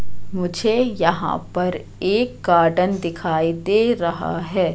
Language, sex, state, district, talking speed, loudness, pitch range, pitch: Hindi, female, Madhya Pradesh, Katni, 115 wpm, -20 LUFS, 170-195 Hz, 180 Hz